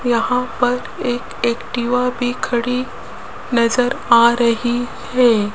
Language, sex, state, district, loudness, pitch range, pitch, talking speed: Hindi, female, Rajasthan, Jaipur, -18 LUFS, 235-250 Hz, 245 Hz, 110 wpm